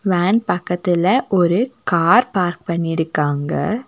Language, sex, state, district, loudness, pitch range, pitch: Tamil, female, Tamil Nadu, Nilgiris, -18 LUFS, 170-210 Hz, 180 Hz